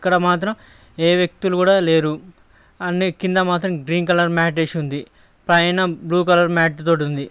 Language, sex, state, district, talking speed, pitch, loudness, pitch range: Telugu, male, Andhra Pradesh, Krishna, 165 wpm, 175 Hz, -18 LUFS, 165-180 Hz